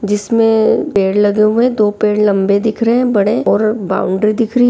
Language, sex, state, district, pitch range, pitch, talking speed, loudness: Hindi, female, Chhattisgarh, Kabirdham, 205-225 Hz, 215 Hz, 215 wpm, -13 LUFS